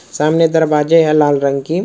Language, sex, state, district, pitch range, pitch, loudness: Hindi, male, Rajasthan, Churu, 145-165 Hz, 155 Hz, -13 LUFS